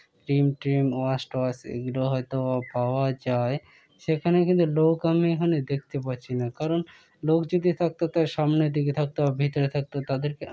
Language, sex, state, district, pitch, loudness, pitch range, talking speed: Bengali, male, West Bengal, Malda, 145 Hz, -26 LUFS, 130-160 Hz, 160 wpm